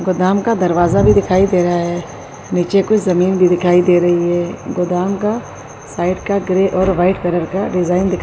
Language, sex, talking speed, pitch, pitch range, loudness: Urdu, female, 195 wpm, 180 Hz, 175-190 Hz, -15 LUFS